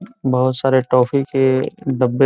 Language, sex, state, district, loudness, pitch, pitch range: Hindi, male, Bihar, Jamui, -17 LUFS, 130 Hz, 130-135 Hz